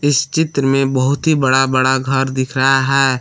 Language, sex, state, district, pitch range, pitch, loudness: Hindi, male, Jharkhand, Palamu, 130-135 Hz, 135 Hz, -15 LUFS